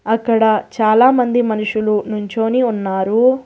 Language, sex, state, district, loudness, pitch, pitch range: Telugu, female, Telangana, Hyderabad, -15 LUFS, 225 Hz, 215-245 Hz